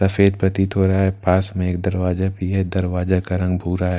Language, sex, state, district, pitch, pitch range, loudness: Hindi, male, Bihar, Katihar, 95 Hz, 90-95 Hz, -20 LUFS